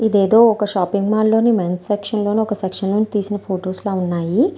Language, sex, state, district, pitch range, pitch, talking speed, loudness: Telugu, female, Andhra Pradesh, Anantapur, 190-220 Hz, 205 Hz, 210 wpm, -18 LUFS